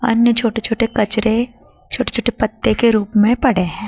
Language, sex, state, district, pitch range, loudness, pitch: Hindi, female, Madhya Pradesh, Dhar, 220-235 Hz, -16 LUFS, 230 Hz